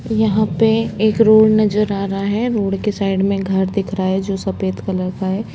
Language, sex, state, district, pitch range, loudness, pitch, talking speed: Hindi, female, Jharkhand, Sahebganj, 190-215 Hz, -17 LUFS, 200 Hz, 240 wpm